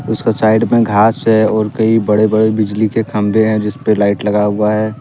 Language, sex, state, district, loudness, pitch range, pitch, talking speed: Hindi, male, Jharkhand, Deoghar, -13 LUFS, 105-110 Hz, 110 Hz, 225 wpm